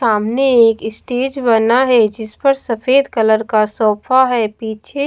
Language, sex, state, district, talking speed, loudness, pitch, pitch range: Hindi, female, Bihar, Katihar, 155 wpm, -14 LUFS, 230 Hz, 220-260 Hz